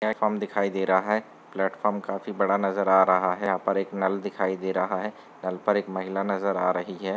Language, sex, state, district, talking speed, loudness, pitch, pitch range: Hindi, male, Chhattisgarh, Sarguja, 235 wpm, -26 LUFS, 95 Hz, 95-100 Hz